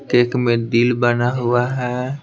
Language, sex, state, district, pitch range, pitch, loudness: Hindi, male, Bihar, Patna, 120-125 Hz, 120 Hz, -18 LUFS